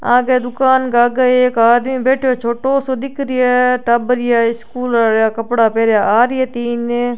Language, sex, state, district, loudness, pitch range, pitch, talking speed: Rajasthani, female, Rajasthan, Churu, -14 LUFS, 235-255 Hz, 245 Hz, 185 wpm